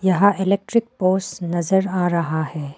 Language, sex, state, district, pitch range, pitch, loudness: Hindi, female, Arunachal Pradesh, Papum Pare, 170-190 Hz, 185 Hz, -20 LUFS